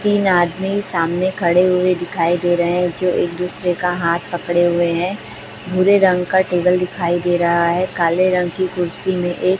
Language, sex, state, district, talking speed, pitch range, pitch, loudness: Hindi, female, Chhattisgarh, Raipur, 195 wpm, 175-185 Hz, 180 Hz, -17 LUFS